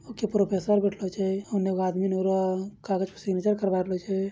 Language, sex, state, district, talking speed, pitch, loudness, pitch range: Angika, male, Bihar, Bhagalpur, 220 wpm, 195 Hz, -27 LUFS, 190-200 Hz